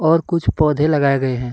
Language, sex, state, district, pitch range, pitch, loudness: Hindi, male, Jharkhand, Deoghar, 135-160 Hz, 150 Hz, -17 LUFS